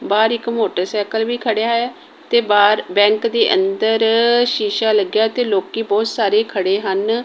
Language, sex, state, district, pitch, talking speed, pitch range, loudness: Punjabi, female, Punjab, Kapurthala, 220 Hz, 155 wpm, 205-235 Hz, -16 LUFS